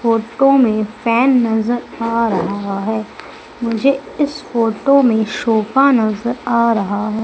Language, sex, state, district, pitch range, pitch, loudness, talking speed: Hindi, female, Madhya Pradesh, Umaria, 220-245 Hz, 230 Hz, -16 LUFS, 135 wpm